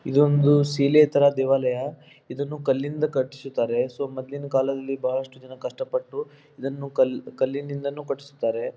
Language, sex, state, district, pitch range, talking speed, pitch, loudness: Kannada, male, Karnataka, Dharwad, 135-145 Hz, 110 wpm, 140 Hz, -24 LUFS